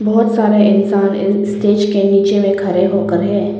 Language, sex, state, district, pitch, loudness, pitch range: Hindi, female, Arunachal Pradesh, Papum Pare, 200 Hz, -13 LUFS, 195-205 Hz